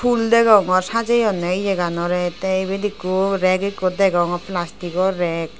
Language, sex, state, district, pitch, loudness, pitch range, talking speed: Chakma, female, Tripura, Dhalai, 185 Hz, -19 LUFS, 175-200 Hz, 140 wpm